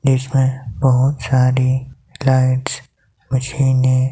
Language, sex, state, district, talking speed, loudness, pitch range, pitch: Hindi, male, Himachal Pradesh, Shimla, 85 wpm, -17 LUFS, 130-135 Hz, 130 Hz